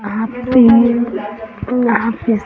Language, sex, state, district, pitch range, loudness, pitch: Hindi, female, Bihar, Sitamarhi, 220-240 Hz, -14 LUFS, 230 Hz